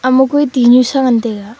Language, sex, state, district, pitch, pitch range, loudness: Wancho, female, Arunachal Pradesh, Longding, 255 Hz, 235-265 Hz, -11 LUFS